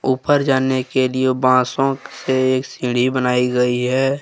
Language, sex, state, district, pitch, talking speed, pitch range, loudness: Hindi, male, Jharkhand, Deoghar, 130 Hz, 155 wpm, 125-135 Hz, -18 LUFS